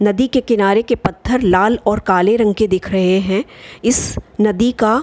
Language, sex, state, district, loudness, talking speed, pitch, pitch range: Hindi, female, Maharashtra, Chandrapur, -15 LUFS, 200 wpm, 215 Hz, 195-230 Hz